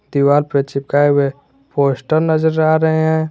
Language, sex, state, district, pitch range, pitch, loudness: Hindi, male, Jharkhand, Garhwa, 140-160 Hz, 145 Hz, -15 LUFS